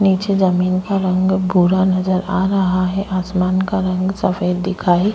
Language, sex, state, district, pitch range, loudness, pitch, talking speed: Hindi, female, Goa, North and South Goa, 185-190 Hz, -17 LUFS, 185 Hz, 175 wpm